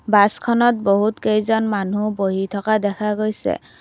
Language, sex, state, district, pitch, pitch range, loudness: Assamese, female, Assam, Kamrup Metropolitan, 210 Hz, 200-215 Hz, -19 LUFS